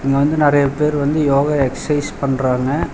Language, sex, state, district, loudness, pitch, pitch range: Tamil, male, Tamil Nadu, Chennai, -16 LUFS, 140 Hz, 135-150 Hz